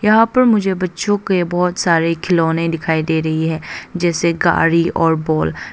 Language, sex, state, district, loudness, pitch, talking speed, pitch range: Hindi, female, Arunachal Pradesh, Longding, -16 LUFS, 170 Hz, 180 wpm, 165-185 Hz